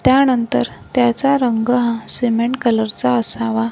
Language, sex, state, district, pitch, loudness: Marathi, female, Maharashtra, Gondia, 230 Hz, -17 LUFS